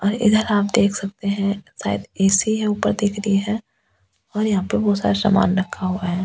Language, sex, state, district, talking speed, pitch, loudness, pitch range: Hindi, female, Delhi, New Delhi, 210 wpm, 200 Hz, -20 LUFS, 185-210 Hz